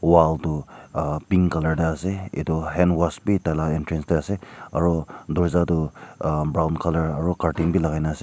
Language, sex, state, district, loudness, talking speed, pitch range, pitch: Nagamese, male, Nagaland, Kohima, -23 LUFS, 175 wpm, 80-85 Hz, 80 Hz